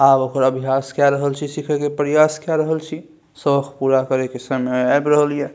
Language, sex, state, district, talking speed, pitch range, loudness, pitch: Maithili, male, Bihar, Saharsa, 215 wpm, 135-150 Hz, -18 LUFS, 140 Hz